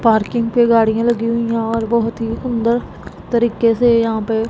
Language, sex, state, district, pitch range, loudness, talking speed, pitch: Hindi, female, Punjab, Pathankot, 225-235 Hz, -16 LUFS, 185 wpm, 230 Hz